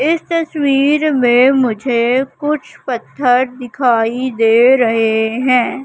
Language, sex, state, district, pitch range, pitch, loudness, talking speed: Hindi, female, Madhya Pradesh, Katni, 240-275 Hz, 255 Hz, -14 LUFS, 100 wpm